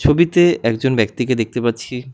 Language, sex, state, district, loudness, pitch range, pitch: Bengali, male, West Bengal, Alipurduar, -17 LUFS, 115-140 Hz, 125 Hz